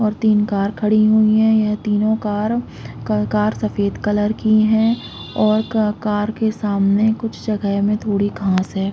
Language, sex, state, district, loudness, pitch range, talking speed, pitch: Hindi, female, Chhattisgarh, Raigarh, -18 LUFS, 200-215 Hz, 175 wpm, 210 Hz